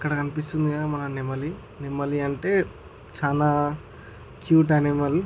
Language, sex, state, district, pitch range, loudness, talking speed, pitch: Telugu, male, Andhra Pradesh, Chittoor, 135-150 Hz, -24 LUFS, 125 wpm, 145 Hz